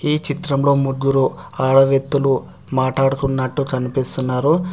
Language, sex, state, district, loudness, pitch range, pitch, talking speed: Telugu, male, Telangana, Hyderabad, -18 LUFS, 130-140 Hz, 135 Hz, 90 wpm